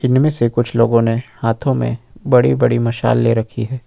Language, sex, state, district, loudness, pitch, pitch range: Hindi, male, Jharkhand, Ranchi, -16 LUFS, 120 Hz, 115-125 Hz